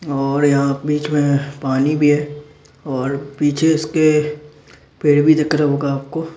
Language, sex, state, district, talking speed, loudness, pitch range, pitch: Hindi, male, Bihar, Araria, 160 wpm, -17 LUFS, 140-150 Hz, 145 Hz